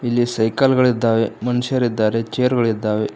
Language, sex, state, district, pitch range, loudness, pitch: Kannada, male, Karnataka, Koppal, 110-125 Hz, -18 LUFS, 120 Hz